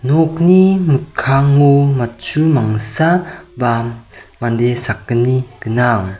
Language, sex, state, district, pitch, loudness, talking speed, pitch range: Garo, male, Meghalaya, South Garo Hills, 130 Hz, -14 LUFS, 75 wpm, 120-155 Hz